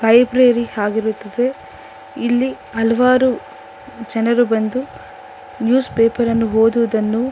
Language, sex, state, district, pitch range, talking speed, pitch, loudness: Kannada, female, Karnataka, Bangalore, 225-250 Hz, 80 wpm, 235 Hz, -17 LUFS